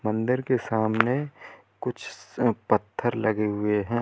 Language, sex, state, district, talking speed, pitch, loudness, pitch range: Hindi, male, Uttar Pradesh, Lalitpur, 135 wpm, 115 Hz, -26 LUFS, 110-125 Hz